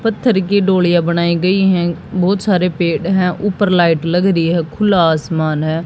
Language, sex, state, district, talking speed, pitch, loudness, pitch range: Hindi, female, Haryana, Jhajjar, 185 wpm, 180 Hz, -14 LUFS, 170-190 Hz